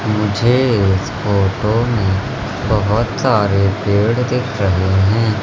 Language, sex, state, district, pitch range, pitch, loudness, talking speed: Hindi, male, Madhya Pradesh, Katni, 100-115 Hz, 105 Hz, -16 LUFS, 110 wpm